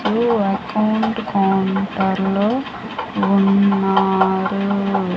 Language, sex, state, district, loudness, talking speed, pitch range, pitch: Telugu, female, Andhra Pradesh, Manyam, -18 LUFS, 60 wpm, 195-215 Hz, 200 Hz